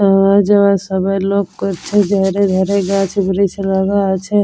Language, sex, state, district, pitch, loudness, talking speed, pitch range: Bengali, female, West Bengal, Jalpaiguri, 195 Hz, -14 LUFS, 135 wpm, 195-200 Hz